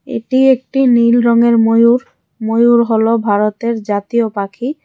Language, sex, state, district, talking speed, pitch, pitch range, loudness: Bengali, female, Tripura, West Tripura, 125 wpm, 235 Hz, 225-240 Hz, -13 LUFS